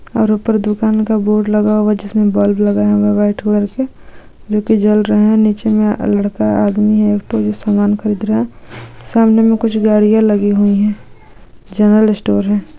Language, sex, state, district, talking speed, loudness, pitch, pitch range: Hindi, female, Maharashtra, Aurangabad, 190 wpm, -13 LUFS, 210 Hz, 205-215 Hz